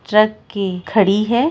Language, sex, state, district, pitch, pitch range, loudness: Hindi, female, Bihar, Araria, 210 Hz, 195-215 Hz, -17 LUFS